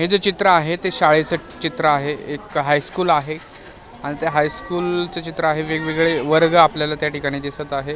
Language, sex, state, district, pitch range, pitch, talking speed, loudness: Marathi, male, Maharashtra, Mumbai Suburban, 150-170 Hz, 155 Hz, 165 wpm, -18 LUFS